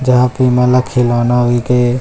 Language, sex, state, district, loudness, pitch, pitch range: Chhattisgarhi, male, Chhattisgarh, Rajnandgaon, -12 LUFS, 125 Hz, 120-125 Hz